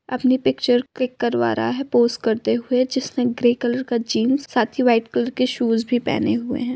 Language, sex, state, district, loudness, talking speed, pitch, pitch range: Hindi, female, Uttar Pradesh, Budaun, -20 LUFS, 215 wpm, 245 Hz, 235-255 Hz